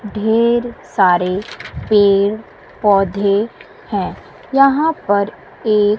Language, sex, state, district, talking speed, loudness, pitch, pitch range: Hindi, female, Bihar, West Champaran, 80 wpm, -16 LUFS, 210 Hz, 200-230 Hz